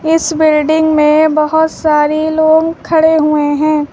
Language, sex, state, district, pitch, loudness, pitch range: Hindi, female, Uttar Pradesh, Lucknow, 315 Hz, -11 LUFS, 305-315 Hz